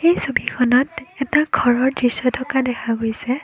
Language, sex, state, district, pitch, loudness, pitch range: Assamese, female, Assam, Kamrup Metropolitan, 255 Hz, -19 LUFS, 245-275 Hz